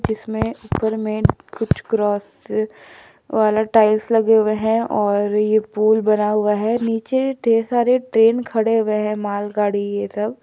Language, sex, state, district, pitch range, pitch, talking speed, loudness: Hindi, female, Jharkhand, Palamu, 210-225 Hz, 215 Hz, 150 wpm, -19 LUFS